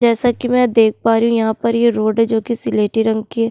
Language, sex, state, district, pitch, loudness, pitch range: Hindi, female, Uttarakhand, Tehri Garhwal, 230 Hz, -16 LUFS, 220-235 Hz